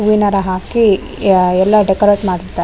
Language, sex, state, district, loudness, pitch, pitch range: Kannada, female, Karnataka, Raichur, -13 LUFS, 195 Hz, 185-210 Hz